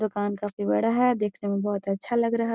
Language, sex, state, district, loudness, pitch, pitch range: Magahi, female, Bihar, Gaya, -26 LUFS, 205 Hz, 200-230 Hz